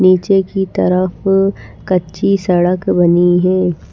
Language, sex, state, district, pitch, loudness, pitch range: Hindi, female, Maharashtra, Washim, 185 Hz, -14 LUFS, 175-195 Hz